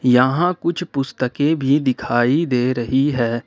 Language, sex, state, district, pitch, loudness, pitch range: Hindi, male, Jharkhand, Ranchi, 130 Hz, -18 LUFS, 125-150 Hz